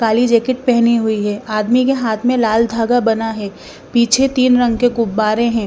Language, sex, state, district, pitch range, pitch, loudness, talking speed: Hindi, female, Bihar, West Champaran, 220-245 Hz, 235 Hz, -15 LUFS, 200 wpm